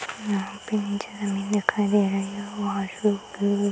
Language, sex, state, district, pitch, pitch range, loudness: Hindi, female, Bihar, Saran, 205 Hz, 200-205 Hz, -26 LUFS